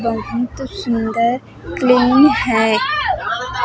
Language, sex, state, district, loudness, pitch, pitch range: Hindi, female, Chhattisgarh, Raipur, -16 LUFS, 245 Hz, 230-255 Hz